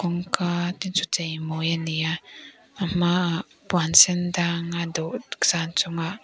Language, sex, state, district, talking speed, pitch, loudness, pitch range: Mizo, female, Mizoram, Aizawl, 155 wpm, 175 Hz, -23 LUFS, 165-180 Hz